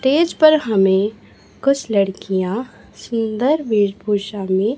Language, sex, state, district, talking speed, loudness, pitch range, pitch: Hindi, male, Chhattisgarh, Raipur, 100 wpm, -18 LUFS, 200-265 Hz, 215 Hz